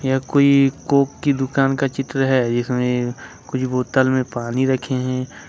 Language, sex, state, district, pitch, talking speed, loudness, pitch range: Hindi, male, Jharkhand, Ranchi, 130 Hz, 165 wpm, -19 LUFS, 125-135 Hz